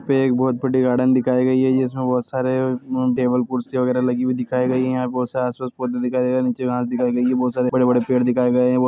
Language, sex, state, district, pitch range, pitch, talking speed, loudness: Hindi, male, Bihar, Begusarai, 125-130 Hz, 125 Hz, 285 wpm, -20 LUFS